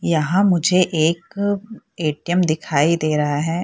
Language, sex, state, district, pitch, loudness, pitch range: Hindi, female, Bihar, Purnia, 170 Hz, -19 LUFS, 155-185 Hz